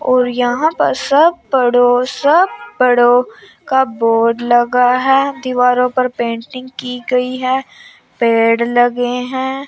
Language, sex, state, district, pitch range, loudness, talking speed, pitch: Hindi, female, Chandigarh, Chandigarh, 245-260 Hz, -14 LUFS, 125 wpm, 250 Hz